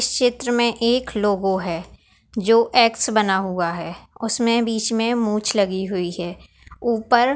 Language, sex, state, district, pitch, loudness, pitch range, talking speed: Hindi, female, Maharashtra, Nagpur, 225 Hz, -20 LUFS, 190-235 Hz, 145 wpm